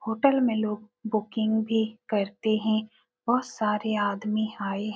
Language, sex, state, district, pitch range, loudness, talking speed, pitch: Hindi, female, Uttar Pradesh, Etah, 210-220 Hz, -27 LUFS, 145 wpm, 220 Hz